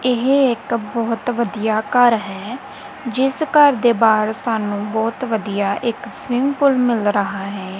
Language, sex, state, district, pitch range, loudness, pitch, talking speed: Punjabi, female, Punjab, Kapurthala, 215-255 Hz, -18 LUFS, 235 Hz, 145 wpm